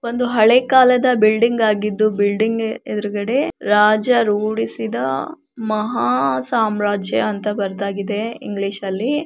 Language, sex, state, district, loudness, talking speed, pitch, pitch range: Kannada, female, Karnataka, Mysore, -18 LUFS, 95 wpm, 215 Hz, 205-235 Hz